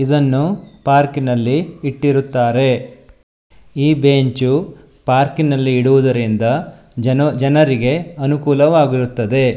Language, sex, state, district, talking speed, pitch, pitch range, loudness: Kannada, male, Karnataka, Shimoga, 65 wpm, 140 Hz, 130-150 Hz, -15 LUFS